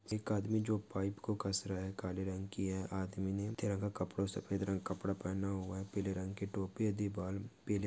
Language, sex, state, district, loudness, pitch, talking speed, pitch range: Hindi, male, Maharashtra, Pune, -40 LUFS, 100 Hz, 235 wpm, 95-105 Hz